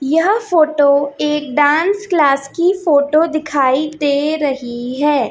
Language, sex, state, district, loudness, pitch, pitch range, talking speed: Hindi, female, Chhattisgarh, Raipur, -15 LUFS, 295 Hz, 280-315 Hz, 125 wpm